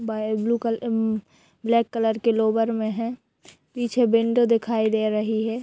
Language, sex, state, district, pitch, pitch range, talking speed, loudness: Hindi, female, Bihar, Jahanabad, 225 Hz, 220-230 Hz, 170 wpm, -23 LUFS